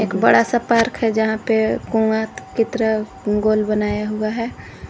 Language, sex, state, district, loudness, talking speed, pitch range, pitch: Hindi, female, Jharkhand, Garhwa, -19 LUFS, 170 wpm, 215-230 Hz, 220 Hz